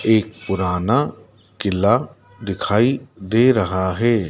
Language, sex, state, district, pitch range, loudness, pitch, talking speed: Hindi, male, Madhya Pradesh, Dhar, 95-115 Hz, -19 LUFS, 105 Hz, 95 wpm